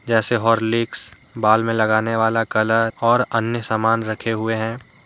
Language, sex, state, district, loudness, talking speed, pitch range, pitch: Hindi, male, Jharkhand, Deoghar, -19 LUFS, 165 wpm, 110-115 Hz, 115 Hz